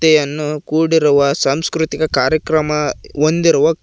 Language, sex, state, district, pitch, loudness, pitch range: Kannada, male, Karnataka, Koppal, 155 Hz, -15 LUFS, 150-160 Hz